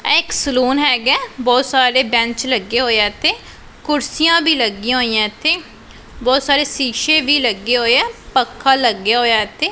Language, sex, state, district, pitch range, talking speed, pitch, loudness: Punjabi, female, Punjab, Pathankot, 235-295 Hz, 165 wpm, 255 Hz, -15 LUFS